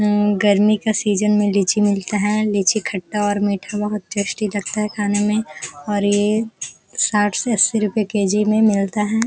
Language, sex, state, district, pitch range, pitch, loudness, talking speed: Hindi, female, Uttar Pradesh, Jalaun, 205-215 Hz, 210 Hz, -18 LUFS, 180 wpm